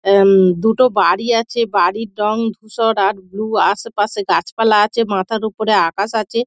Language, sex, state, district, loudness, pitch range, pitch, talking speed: Bengali, female, West Bengal, Dakshin Dinajpur, -16 LUFS, 200-225 Hz, 215 Hz, 160 wpm